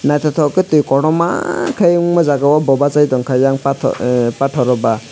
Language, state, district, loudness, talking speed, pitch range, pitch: Kokborok, Tripura, West Tripura, -14 LUFS, 175 wpm, 130-155 Hz, 140 Hz